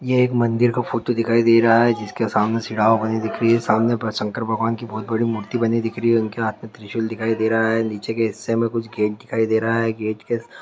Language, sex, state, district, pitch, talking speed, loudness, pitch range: Hindi, male, Chhattisgarh, Balrampur, 115 Hz, 265 wpm, -20 LUFS, 110-115 Hz